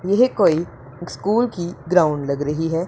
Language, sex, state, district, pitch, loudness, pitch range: Hindi, male, Punjab, Pathankot, 170 Hz, -20 LUFS, 150-185 Hz